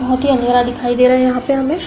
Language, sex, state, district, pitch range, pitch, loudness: Hindi, female, Uttar Pradesh, Hamirpur, 245-275 Hz, 255 Hz, -14 LUFS